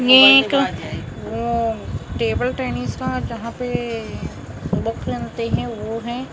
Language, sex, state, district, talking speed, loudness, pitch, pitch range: Hindi, male, Maharashtra, Mumbai Suburban, 150 wpm, -20 LUFS, 235 Hz, 230-260 Hz